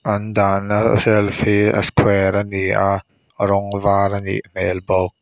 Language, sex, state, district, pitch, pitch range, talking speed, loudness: Mizo, male, Mizoram, Aizawl, 100 Hz, 100-105 Hz, 170 wpm, -18 LUFS